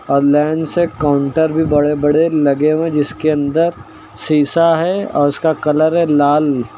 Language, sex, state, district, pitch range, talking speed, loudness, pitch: Hindi, male, Uttar Pradesh, Lucknow, 145-160 Hz, 170 wpm, -14 LUFS, 155 Hz